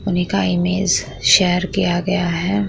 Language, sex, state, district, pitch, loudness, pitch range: Hindi, female, Bihar, Vaishali, 185 Hz, -17 LUFS, 175-195 Hz